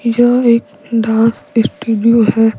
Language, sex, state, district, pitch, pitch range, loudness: Hindi, female, Bihar, Patna, 230 Hz, 225-235 Hz, -13 LUFS